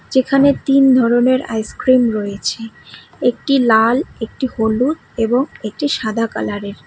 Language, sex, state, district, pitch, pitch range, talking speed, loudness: Bengali, female, West Bengal, Cooch Behar, 240 Hz, 220-265 Hz, 115 wpm, -16 LUFS